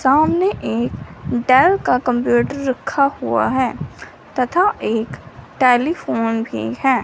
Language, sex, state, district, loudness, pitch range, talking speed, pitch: Hindi, female, Punjab, Fazilka, -18 LUFS, 240-285 Hz, 110 wpm, 255 Hz